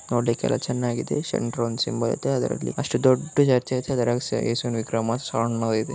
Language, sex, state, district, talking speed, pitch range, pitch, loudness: Kannada, male, Karnataka, Bellary, 120 wpm, 115-130 Hz, 120 Hz, -24 LUFS